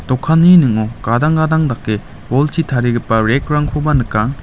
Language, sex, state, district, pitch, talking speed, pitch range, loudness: Garo, male, Meghalaya, West Garo Hills, 130 Hz, 120 wpm, 115-150 Hz, -14 LUFS